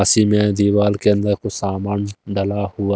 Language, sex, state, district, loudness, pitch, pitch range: Hindi, male, Delhi, New Delhi, -18 LUFS, 100 Hz, 100-105 Hz